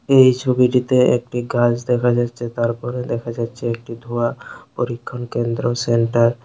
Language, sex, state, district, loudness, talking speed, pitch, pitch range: Bengali, male, Tripura, Unakoti, -19 LUFS, 140 wpm, 120 Hz, 120-125 Hz